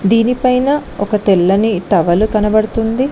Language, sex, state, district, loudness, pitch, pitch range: Telugu, female, Telangana, Mahabubabad, -14 LUFS, 215 Hz, 200-240 Hz